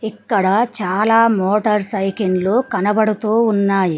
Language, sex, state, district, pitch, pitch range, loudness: Telugu, female, Telangana, Mahabubabad, 210 Hz, 195-220 Hz, -16 LUFS